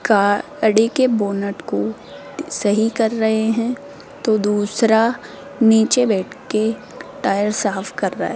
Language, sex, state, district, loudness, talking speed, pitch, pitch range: Hindi, female, Rajasthan, Jaipur, -18 LUFS, 130 wpm, 220 Hz, 205-230 Hz